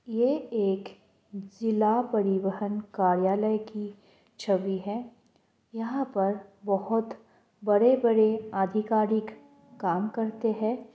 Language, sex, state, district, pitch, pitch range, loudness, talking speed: Hindi, female, Bihar, Kishanganj, 215 Hz, 200-225 Hz, -27 LUFS, 90 wpm